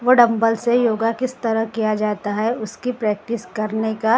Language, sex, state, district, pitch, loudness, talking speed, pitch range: Hindi, female, Maharashtra, Gondia, 225 Hz, -20 LUFS, 215 wpm, 215-235 Hz